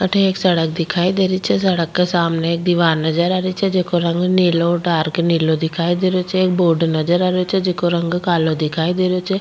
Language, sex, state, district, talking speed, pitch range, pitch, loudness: Rajasthani, female, Rajasthan, Churu, 240 wpm, 165-185 Hz, 175 Hz, -17 LUFS